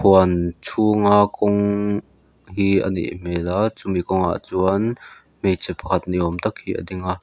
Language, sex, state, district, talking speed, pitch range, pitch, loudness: Mizo, male, Mizoram, Aizawl, 160 wpm, 90-100 Hz, 95 Hz, -20 LUFS